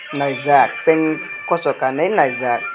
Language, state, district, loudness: Kokborok, Tripura, West Tripura, -17 LUFS